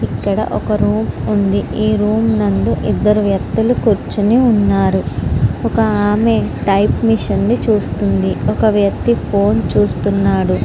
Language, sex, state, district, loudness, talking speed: Telugu, female, Andhra Pradesh, Srikakulam, -15 LUFS, 120 wpm